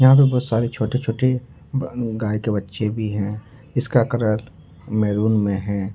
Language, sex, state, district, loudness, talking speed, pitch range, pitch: Hindi, male, Jharkhand, Ranchi, -21 LUFS, 160 wpm, 105-125 Hz, 110 Hz